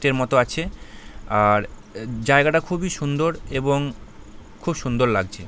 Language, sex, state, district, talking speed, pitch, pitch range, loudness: Bengali, male, West Bengal, Paschim Medinipur, 130 wpm, 125 Hz, 105-145 Hz, -21 LUFS